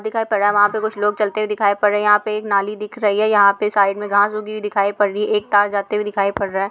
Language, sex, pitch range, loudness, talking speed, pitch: Hindi, female, 205-210 Hz, -18 LUFS, 360 wpm, 210 Hz